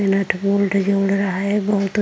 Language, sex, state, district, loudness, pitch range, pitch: Hindi, female, Uttar Pradesh, Jyotiba Phule Nagar, -19 LUFS, 195-200 Hz, 200 Hz